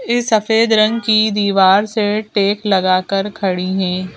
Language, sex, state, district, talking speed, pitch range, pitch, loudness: Hindi, female, Madhya Pradesh, Bhopal, 145 wpm, 190-215 Hz, 205 Hz, -15 LUFS